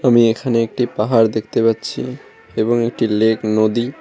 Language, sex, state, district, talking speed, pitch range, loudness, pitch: Bengali, male, West Bengal, Cooch Behar, 150 wpm, 110-120 Hz, -17 LUFS, 115 Hz